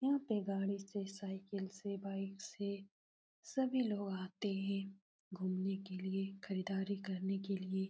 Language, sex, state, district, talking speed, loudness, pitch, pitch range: Hindi, female, Uttar Pradesh, Etah, 150 wpm, -41 LUFS, 195 Hz, 190-200 Hz